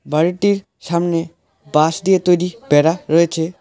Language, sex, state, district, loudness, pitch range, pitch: Bengali, male, West Bengal, Alipurduar, -17 LUFS, 160-180 Hz, 170 Hz